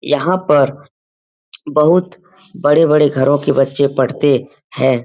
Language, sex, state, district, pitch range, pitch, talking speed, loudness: Hindi, male, Uttar Pradesh, Etah, 135-150 Hz, 145 Hz, 95 wpm, -14 LUFS